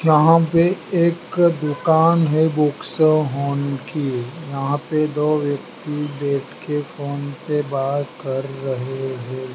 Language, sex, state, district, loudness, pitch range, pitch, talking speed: Hindi, male, Madhya Pradesh, Dhar, -20 LUFS, 135-160 Hz, 150 Hz, 125 wpm